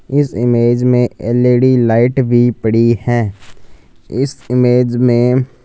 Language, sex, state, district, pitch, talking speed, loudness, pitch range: Hindi, male, Punjab, Fazilka, 120 Hz, 115 wpm, -13 LUFS, 120-125 Hz